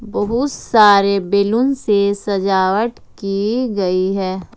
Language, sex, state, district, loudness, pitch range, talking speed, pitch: Hindi, female, Jharkhand, Ranchi, -16 LUFS, 195-225 Hz, 105 wpm, 200 Hz